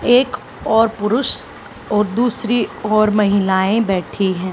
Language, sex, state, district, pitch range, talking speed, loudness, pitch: Hindi, female, Haryana, Charkhi Dadri, 200-240 Hz, 120 wpm, -17 LUFS, 215 Hz